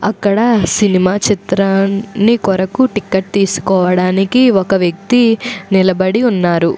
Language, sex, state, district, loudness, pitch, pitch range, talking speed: Telugu, female, Andhra Pradesh, Anantapur, -13 LUFS, 195 Hz, 190-220 Hz, 90 wpm